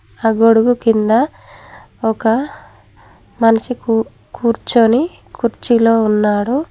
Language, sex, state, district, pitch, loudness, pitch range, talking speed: Telugu, female, Telangana, Mahabubabad, 230 Hz, -15 LUFS, 225-245 Hz, 80 wpm